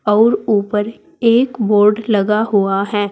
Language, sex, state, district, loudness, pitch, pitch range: Hindi, female, Uttar Pradesh, Saharanpur, -15 LUFS, 210 Hz, 205-225 Hz